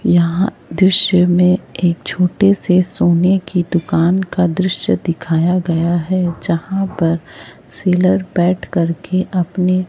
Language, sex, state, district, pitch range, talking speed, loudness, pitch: Hindi, male, Chhattisgarh, Raipur, 170-185 Hz, 125 wpm, -15 LUFS, 180 Hz